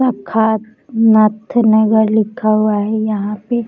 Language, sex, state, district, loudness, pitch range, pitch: Hindi, female, Bihar, Bhagalpur, -14 LUFS, 215-225 Hz, 220 Hz